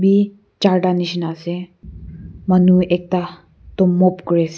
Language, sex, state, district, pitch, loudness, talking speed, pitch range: Nagamese, female, Nagaland, Kohima, 180 Hz, -17 LUFS, 130 wpm, 175-185 Hz